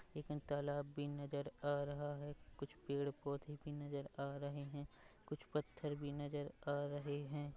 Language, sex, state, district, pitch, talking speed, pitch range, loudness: Hindi, female, Chhattisgarh, Rajnandgaon, 145 Hz, 175 wpm, 140-145 Hz, -46 LUFS